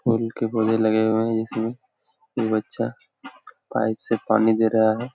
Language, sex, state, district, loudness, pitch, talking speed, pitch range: Hindi, male, Jharkhand, Jamtara, -23 LUFS, 110 Hz, 175 wpm, 110-115 Hz